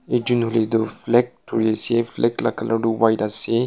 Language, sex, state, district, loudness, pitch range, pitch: Nagamese, male, Nagaland, Kohima, -21 LUFS, 110-120 Hz, 115 Hz